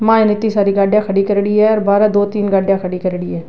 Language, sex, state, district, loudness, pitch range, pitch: Rajasthani, female, Rajasthan, Nagaur, -14 LUFS, 195-210 Hz, 205 Hz